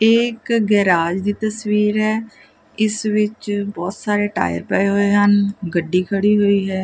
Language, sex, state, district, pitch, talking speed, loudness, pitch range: Punjabi, female, Punjab, Kapurthala, 205 Hz, 160 wpm, -18 LUFS, 195-215 Hz